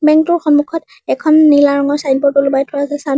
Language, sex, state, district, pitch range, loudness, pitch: Assamese, female, Assam, Sonitpur, 280-310 Hz, -12 LUFS, 290 Hz